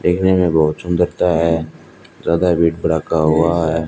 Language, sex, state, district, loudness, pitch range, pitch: Hindi, male, Haryana, Charkhi Dadri, -16 LUFS, 80-90 Hz, 85 Hz